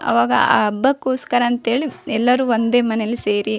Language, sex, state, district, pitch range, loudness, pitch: Kannada, female, Karnataka, Shimoga, 220-255 Hz, -18 LUFS, 240 Hz